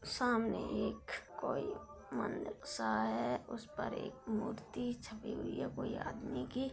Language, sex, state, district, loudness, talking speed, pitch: Hindi, female, Bihar, Darbhanga, -40 LUFS, 135 wpm, 220 Hz